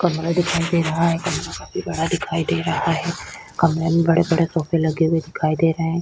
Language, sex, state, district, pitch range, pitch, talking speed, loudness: Hindi, female, Chhattisgarh, Korba, 165-170 Hz, 165 Hz, 220 wpm, -20 LUFS